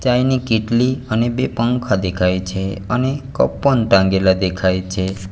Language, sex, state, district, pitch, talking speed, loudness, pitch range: Gujarati, male, Gujarat, Valsad, 100 Hz, 145 wpm, -17 LUFS, 95-125 Hz